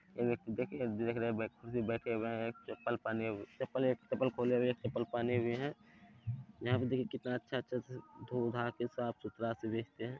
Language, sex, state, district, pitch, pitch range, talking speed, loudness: Maithili, male, Bihar, Supaul, 120 Hz, 115-125 Hz, 220 wpm, -38 LUFS